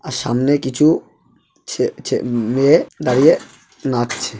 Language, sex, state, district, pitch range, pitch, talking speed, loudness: Bengali, male, West Bengal, Malda, 120-145 Hz, 130 Hz, 95 wpm, -17 LUFS